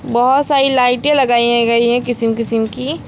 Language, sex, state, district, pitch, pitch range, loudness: Hindi, female, West Bengal, Alipurduar, 245 Hz, 235-270 Hz, -13 LUFS